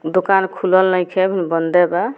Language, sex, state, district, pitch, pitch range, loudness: Bhojpuri, female, Bihar, Muzaffarpur, 185 Hz, 175-190 Hz, -16 LUFS